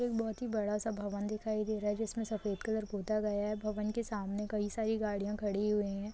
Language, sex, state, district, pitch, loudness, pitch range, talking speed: Maithili, female, Bihar, Supaul, 210 Hz, -36 LUFS, 205-220 Hz, 245 wpm